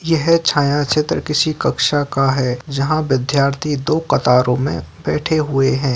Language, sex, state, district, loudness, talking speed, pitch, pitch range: Hindi, female, Bihar, Saharsa, -17 LUFS, 150 wpm, 145 Hz, 135-155 Hz